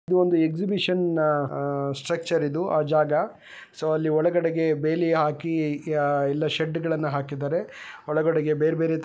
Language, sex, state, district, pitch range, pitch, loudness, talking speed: Kannada, male, Karnataka, Bellary, 150-165 Hz, 155 Hz, -24 LUFS, 140 wpm